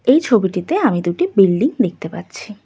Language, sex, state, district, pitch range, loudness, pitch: Bengali, female, West Bengal, Cooch Behar, 180-240 Hz, -16 LUFS, 195 Hz